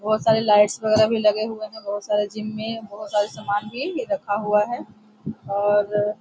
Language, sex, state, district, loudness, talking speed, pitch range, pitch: Hindi, female, Bihar, Muzaffarpur, -22 LUFS, 205 wpm, 205-220 Hz, 210 Hz